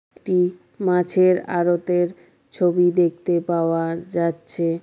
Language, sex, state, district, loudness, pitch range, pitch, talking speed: Bengali, female, West Bengal, Dakshin Dinajpur, -21 LUFS, 170-180 Hz, 175 Hz, 85 wpm